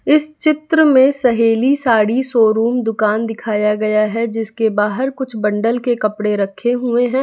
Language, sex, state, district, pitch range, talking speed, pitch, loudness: Hindi, female, Bihar, West Champaran, 215-260 Hz, 160 wpm, 230 Hz, -16 LUFS